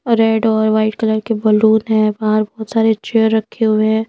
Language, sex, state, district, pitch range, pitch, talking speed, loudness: Hindi, female, Madhya Pradesh, Bhopal, 215-225 Hz, 220 Hz, 205 wpm, -15 LUFS